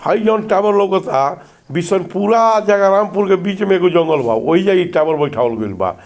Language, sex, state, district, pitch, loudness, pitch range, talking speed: Bhojpuri, male, Bihar, Gopalganj, 190 Hz, -15 LUFS, 150-200 Hz, 180 wpm